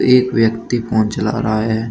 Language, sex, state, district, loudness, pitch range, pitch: Hindi, male, Uttar Pradesh, Shamli, -16 LUFS, 110-120 Hz, 115 Hz